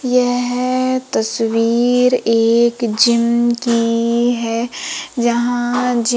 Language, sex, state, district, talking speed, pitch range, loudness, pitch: Hindi, female, Madhya Pradesh, Umaria, 80 wpm, 230-245 Hz, -16 LUFS, 240 Hz